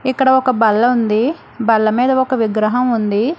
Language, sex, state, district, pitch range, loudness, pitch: Telugu, female, Telangana, Hyderabad, 220-260 Hz, -15 LUFS, 240 Hz